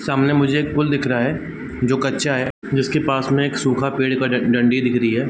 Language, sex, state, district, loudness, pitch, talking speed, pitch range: Hindi, male, Bihar, East Champaran, -19 LUFS, 135 Hz, 235 wpm, 125-140 Hz